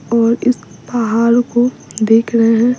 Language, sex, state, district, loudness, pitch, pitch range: Hindi, female, Bihar, Patna, -14 LUFS, 235 Hz, 225-240 Hz